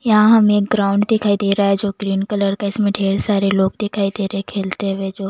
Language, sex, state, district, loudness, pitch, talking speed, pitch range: Hindi, female, Bihar, Patna, -17 LUFS, 200 Hz, 260 wpm, 195-205 Hz